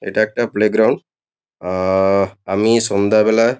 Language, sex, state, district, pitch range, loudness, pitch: Bengali, male, West Bengal, Kolkata, 95-110 Hz, -16 LUFS, 100 Hz